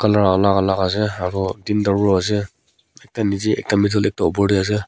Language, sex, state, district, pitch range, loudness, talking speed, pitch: Nagamese, male, Nagaland, Kohima, 95-105 Hz, -18 LUFS, 195 wpm, 100 Hz